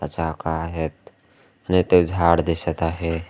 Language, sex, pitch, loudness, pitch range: Marathi, male, 85 Hz, -21 LUFS, 80-85 Hz